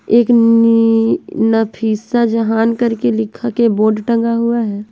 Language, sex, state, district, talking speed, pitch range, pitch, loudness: Hindi, female, Bihar, West Champaran, 135 wpm, 225-235 Hz, 230 Hz, -14 LUFS